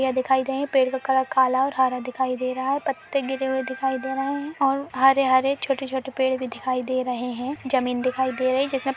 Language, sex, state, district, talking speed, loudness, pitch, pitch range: Hindi, female, Uttar Pradesh, Jalaun, 265 wpm, -23 LUFS, 265 Hz, 255-270 Hz